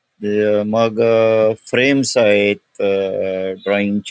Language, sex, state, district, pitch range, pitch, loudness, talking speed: Marathi, male, Goa, North and South Goa, 100-115 Hz, 105 Hz, -16 LUFS, 145 wpm